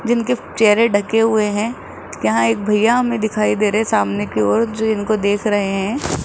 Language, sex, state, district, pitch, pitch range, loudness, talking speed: Hindi, female, Rajasthan, Jaipur, 215 Hz, 205-225 Hz, -17 LUFS, 190 wpm